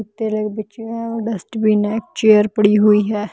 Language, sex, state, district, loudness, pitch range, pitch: Hindi, female, Bihar, Patna, -17 LUFS, 210-225 Hz, 215 Hz